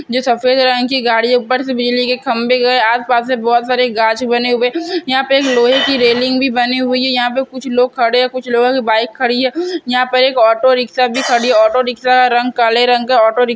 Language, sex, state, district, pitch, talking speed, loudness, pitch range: Hindi, female, Bihar, Saharsa, 250 Hz, 260 wpm, -13 LUFS, 240-255 Hz